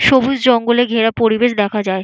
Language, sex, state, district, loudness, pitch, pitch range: Bengali, female, West Bengal, Jalpaiguri, -14 LUFS, 235 Hz, 220-245 Hz